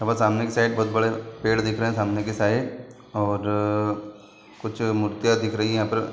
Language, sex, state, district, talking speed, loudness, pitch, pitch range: Hindi, male, Uttar Pradesh, Deoria, 215 wpm, -24 LUFS, 110 Hz, 105-115 Hz